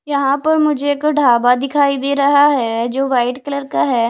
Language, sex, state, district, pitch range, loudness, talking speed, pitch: Hindi, female, Himachal Pradesh, Shimla, 250-285 Hz, -15 LUFS, 205 wpm, 280 Hz